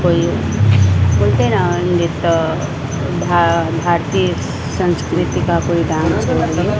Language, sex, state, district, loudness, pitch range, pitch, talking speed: Hindi, female, Maharashtra, Mumbai Suburban, -16 LUFS, 105-170 Hz, 145 Hz, 70 wpm